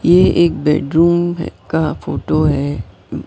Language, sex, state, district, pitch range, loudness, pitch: Hindi, female, Maharashtra, Mumbai Suburban, 145-170 Hz, -15 LUFS, 155 Hz